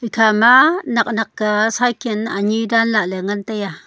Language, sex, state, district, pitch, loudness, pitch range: Wancho, female, Arunachal Pradesh, Longding, 220 Hz, -16 LUFS, 210-230 Hz